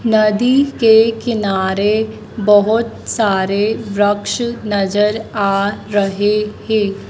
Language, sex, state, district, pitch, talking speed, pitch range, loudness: Hindi, female, Madhya Pradesh, Dhar, 210 Hz, 85 wpm, 205-225 Hz, -15 LUFS